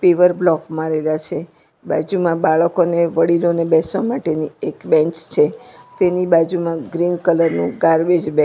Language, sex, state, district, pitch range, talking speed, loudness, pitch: Gujarati, female, Gujarat, Valsad, 160-175 Hz, 135 wpm, -17 LUFS, 165 Hz